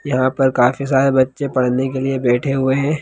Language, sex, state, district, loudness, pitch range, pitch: Hindi, male, Bihar, Jahanabad, -17 LUFS, 130-135 Hz, 130 Hz